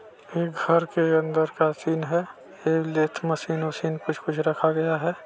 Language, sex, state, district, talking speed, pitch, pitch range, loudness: Hindi, male, Chhattisgarh, Balrampur, 170 wpm, 160 Hz, 160-170 Hz, -25 LUFS